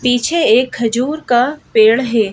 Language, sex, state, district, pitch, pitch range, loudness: Hindi, female, Madhya Pradesh, Bhopal, 245 Hz, 230-265 Hz, -14 LUFS